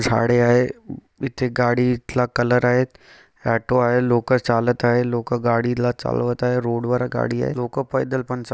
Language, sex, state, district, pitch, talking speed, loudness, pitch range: Marathi, male, Maharashtra, Chandrapur, 120 Hz, 155 wpm, -20 LUFS, 120-125 Hz